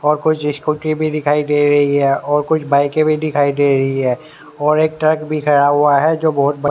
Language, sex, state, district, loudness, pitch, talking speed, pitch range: Hindi, male, Haryana, Rohtak, -15 LUFS, 150 Hz, 240 wpm, 145-155 Hz